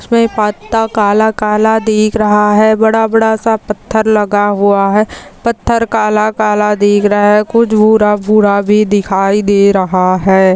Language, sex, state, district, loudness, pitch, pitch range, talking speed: Hindi, male, Maharashtra, Aurangabad, -11 LUFS, 210 Hz, 205-220 Hz, 160 wpm